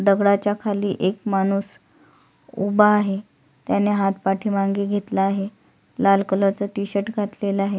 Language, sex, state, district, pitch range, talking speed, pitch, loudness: Marathi, female, Maharashtra, Solapur, 195-205 Hz, 130 wpm, 200 Hz, -21 LUFS